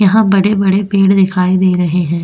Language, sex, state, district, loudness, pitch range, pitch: Hindi, female, Goa, North and South Goa, -12 LUFS, 180-200 Hz, 195 Hz